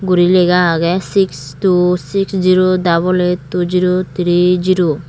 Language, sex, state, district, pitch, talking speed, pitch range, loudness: Chakma, female, Tripura, Dhalai, 180 Hz, 155 wpm, 175-185 Hz, -14 LUFS